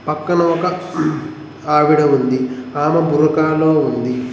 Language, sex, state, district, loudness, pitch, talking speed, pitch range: Telugu, male, Telangana, Mahabubabad, -16 LUFS, 155 Hz, 110 wpm, 145-155 Hz